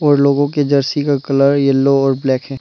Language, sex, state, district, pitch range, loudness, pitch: Hindi, male, Arunachal Pradesh, Lower Dibang Valley, 135-145 Hz, -14 LUFS, 140 Hz